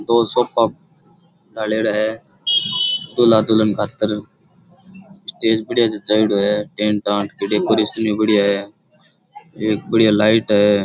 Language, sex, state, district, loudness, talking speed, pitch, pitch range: Rajasthani, male, Rajasthan, Churu, -17 LUFS, 120 wpm, 110 Hz, 105-170 Hz